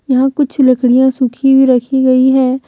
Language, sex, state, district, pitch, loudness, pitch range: Hindi, female, Jharkhand, Deoghar, 260 Hz, -11 LUFS, 255-270 Hz